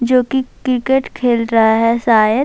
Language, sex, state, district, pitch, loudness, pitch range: Urdu, female, Bihar, Saharsa, 245 Hz, -15 LUFS, 230-255 Hz